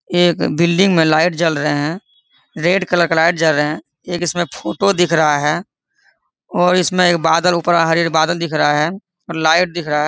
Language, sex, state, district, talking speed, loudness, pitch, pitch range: Hindi, male, Jharkhand, Sahebganj, 205 wpm, -15 LUFS, 170 Hz, 155-175 Hz